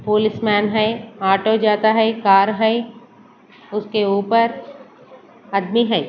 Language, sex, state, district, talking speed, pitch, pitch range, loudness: Hindi, female, Maharashtra, Mumbai Suburban, 110 wpm, 220 Hz, 210-230 Hz, -18 LUFS